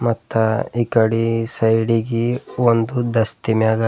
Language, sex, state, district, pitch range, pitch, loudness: Kannada, male, Karnataka, Bidar, 110-120 Hz, 115 Hz, -19 LUFS